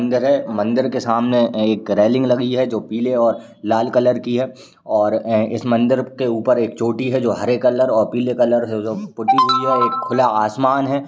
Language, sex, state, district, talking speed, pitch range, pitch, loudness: Hindi, male, Uttar Pradesh, Ghazipur, 215 wpm, 115-130 Hz, 125 Hz, -18 LUFS